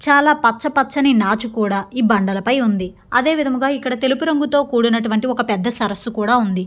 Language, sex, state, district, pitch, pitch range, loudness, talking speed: Telugu, female, Andhra Pradesh, Guntur, 240 Hz, 215-275 Hz, -17 LUFS, 160 wpm